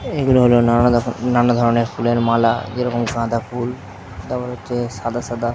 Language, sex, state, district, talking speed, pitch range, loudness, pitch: Bengali, male, West Bengal, Jhargram, 160 wpm, 115-125 Hz, -18 LUFS, 120 Hz